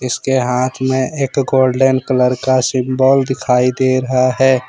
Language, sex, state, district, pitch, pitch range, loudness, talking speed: Hindi, male, Jharkhand, Ranchi, 130 Hz, 125-130 Hz, -14 LUFS, 155 wpm